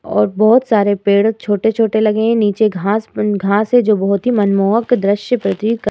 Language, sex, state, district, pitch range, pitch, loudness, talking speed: Hindi, female, Uttar Pradesh, Muzaffarnagar, 200-225 Hz, 210 Hz, -14 LUFS, 215 wpm